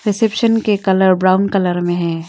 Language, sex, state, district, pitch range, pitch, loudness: Hindi, female, Arunachal Pradesh, Longding, 180-210 Hz, 190 Hz, -15 LUFS